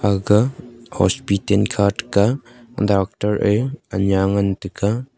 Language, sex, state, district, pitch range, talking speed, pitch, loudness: Wancho, male, Arunachal Pradesh, Longding, 100-120 Hz, 105 wpm, 105 Hz, -19 LUFS